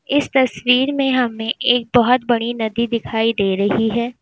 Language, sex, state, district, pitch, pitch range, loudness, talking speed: Hindi, female, Uttar Pradesh, Lalitpur, 235 Hz, 225-255 Hz, -17 LUFS, 170 wpm